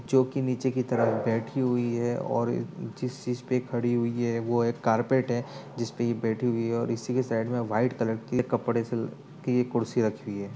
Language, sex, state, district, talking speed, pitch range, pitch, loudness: Hindi, male, Uttar Pradesh, Etah, 215 wpm, 115-125 Hz, 120 Hz, -28 LUFS